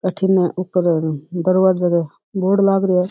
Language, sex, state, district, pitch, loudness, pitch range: Rajasthani, female, Rajasthan, Churu, 185 Hz, -18 LUFS, 175-190 Hz